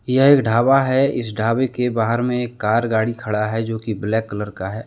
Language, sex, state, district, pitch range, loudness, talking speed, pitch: Hindi, male, Jharkhand, Deoghar, 110-125 Hz, -19 LUFS, 235 wpm, 115 Hz